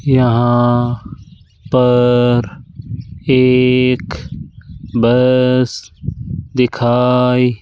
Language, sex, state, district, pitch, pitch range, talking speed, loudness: Hindi, male, Rajasthan, Jaipur, 125 Hz, 120-125 Hz, 45 wpm, -13 LUFS